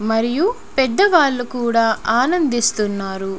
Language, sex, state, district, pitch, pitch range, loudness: Telugu, female, Telangana, Nalgonda, 240 Hz, 220-280 Hz, -17 LUFS